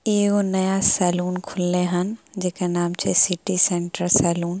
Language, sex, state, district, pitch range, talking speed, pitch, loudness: Maithili, female, Bihar, Samastipur, 175-195 Hz, 155 wpm, 180 Hz, -21 LUFS